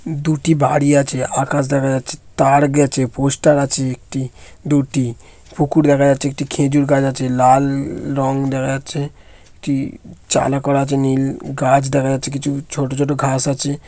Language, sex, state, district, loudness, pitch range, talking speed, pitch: Bengali, male, West Bengal, Malda, -17 LUFS, 135-145 Hz, 160 wpm, 140 Hz